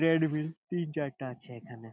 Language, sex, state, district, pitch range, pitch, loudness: Bengali, male, West Bengal, Jhargram, 125-165 Hz, 150 Hz, -33 LUFS